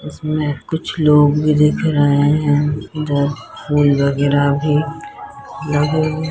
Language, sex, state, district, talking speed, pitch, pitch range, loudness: Hindi, female, Bihar, Madhepura, 135 wpm, 150 Hz, 145-155 Hz, -16 LUFS